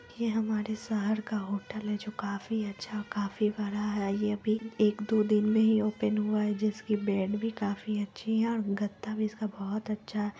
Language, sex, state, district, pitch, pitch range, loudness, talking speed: Hindi, female, Bihar, Lakhisarai, 210 Hz, 205-215 Hz, -31 LUFS, 195 wpm